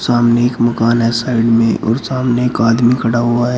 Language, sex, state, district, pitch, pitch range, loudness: Hindi, male, Uttar Pradesh, Shamli, 120 Hz, 115-120 Hz, -13 LUFS